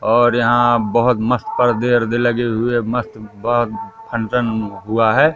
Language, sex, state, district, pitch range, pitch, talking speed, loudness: Hindi, male, Madhya Pradesh, Katni, 115-120 Hz, 120 Hz, 145 wpm, -17 LUFS